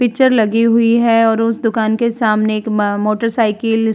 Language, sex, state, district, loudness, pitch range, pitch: Hindi, female, Uttar Pradesh, Hamirpur, -14 LUFS, 215-230 Hz, 225 Hz